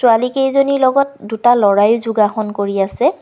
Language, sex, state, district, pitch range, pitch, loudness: Assamese, female, Assam, Kamrup Metropolitan, 210-270 Hz, 230 Hz, -14 LUFS